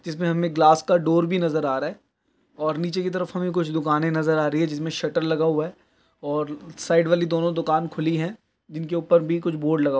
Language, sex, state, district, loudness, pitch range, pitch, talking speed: Hindi, male, Uttar Pradesh, Deoria, -23 LUFS, 155-170 Hz, 165 Hz, 245 wpm